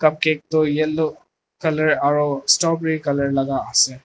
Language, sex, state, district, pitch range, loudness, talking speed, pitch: Nagamese, male, Nagaland, Dimapur, 140-155 Hz, -19 LUFS, 135 wpm, 155 Hz